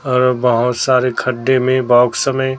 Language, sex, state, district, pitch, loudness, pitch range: Hindi, female, Chhattisgarh, Raipur, 125 Hz, -14 LUFS, 125-130 Hz